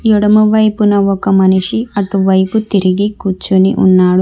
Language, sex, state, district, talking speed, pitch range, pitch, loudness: Telugu, female, Telangana, Hyderabad, 100 wpm, 190-215 Hz, 195 Hz, -11 LUFS